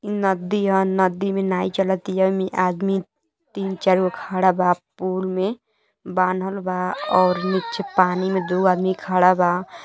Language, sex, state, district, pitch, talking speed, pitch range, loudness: Bhojpuri, female, Uttar Pradesh, Deoria, 190 Hz, 145 wpm, 185-195 Hz, -21 LUFS